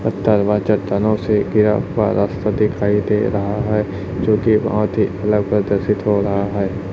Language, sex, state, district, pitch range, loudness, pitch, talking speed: Hindi, male, Chhattisgarh, Raipur, 100-105 Hz, -17 LUFS, 105 Hz, 120 wpm